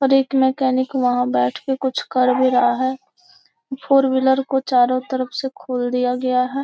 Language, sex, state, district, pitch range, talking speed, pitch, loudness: Hindi, female, Bihar, Gopalganj, 250-270 Hz, 180 wpm, 260 Hz, -19 LUFS